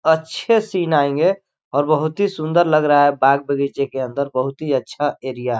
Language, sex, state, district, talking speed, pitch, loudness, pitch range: Hindi, male, Chhattisgarh, Korba, 205 wpm, 145 Hz, -18 LUFS, 140-160 Hz